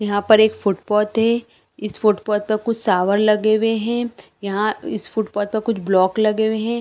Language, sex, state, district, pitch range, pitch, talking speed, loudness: Hindi, female, Chhattisgarh, Bilaspur, 205-225 Hz, 215 Hz, 195 wpm, -19 LUFS